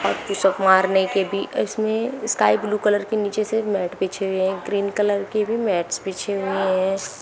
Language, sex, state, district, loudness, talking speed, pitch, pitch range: Hindi, female, Uttar Pradesh, Shamli, -21 LUFS, 205 wpm, 195 Hz, 190-210 Hz